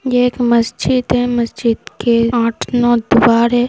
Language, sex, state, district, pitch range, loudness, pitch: Hindi, female, Uttar Pradesh, Hamirpur, 230-245 Hz, -14 LUFS, 240 Hz